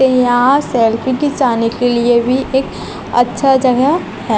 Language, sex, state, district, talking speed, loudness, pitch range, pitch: Hindi, female, Chhattisgarh, Raipur, 135 wpm, -13 LUFS, 240-265 Hz, 255 Hz